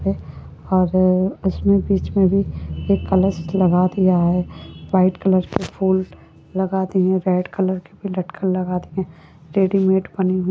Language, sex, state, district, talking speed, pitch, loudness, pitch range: Hindi, female, Chhattisgarh, Balrampur, 165 wpm, 185 Hz, -19 LUFS, 185-190 Hz